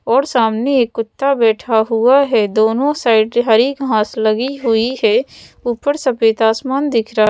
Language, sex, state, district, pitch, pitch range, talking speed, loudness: Hindi, female, Madhya Pradesh, Bhopal, 235 Hz, 220-270 Hz, 155 wpm, -15 LUFS